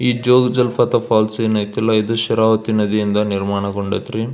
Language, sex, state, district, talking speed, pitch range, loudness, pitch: Kannada, male, Karnataka, Belgaum, 150 wpm, 105-115 Hz, -17 LUFS, 110 Hz